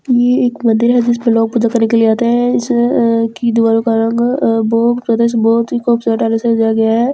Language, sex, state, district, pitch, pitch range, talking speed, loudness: Hindi, female, Delhi, New Delhi, 230 Hz, 225-240 Hz, 235 wpm, -13 LUFS